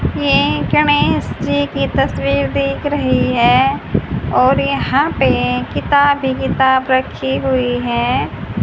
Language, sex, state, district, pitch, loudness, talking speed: Hindi, female, Haryana, Charkhi Dadri, 240 Hz, -15 LUFS, 120 wpm